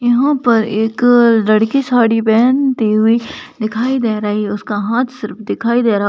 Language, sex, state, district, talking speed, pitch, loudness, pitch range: Hindi, female, Rajasthan, Churu, 160 wpm, 230 Hz, -14 LUFS, 215-245 Hz